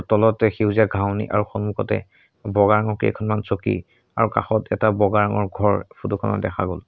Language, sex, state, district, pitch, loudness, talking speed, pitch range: Assamese, male, Assam, Sonitpur, 105 Hz, -21 LUFS, 165 wpm, 100-110 Hz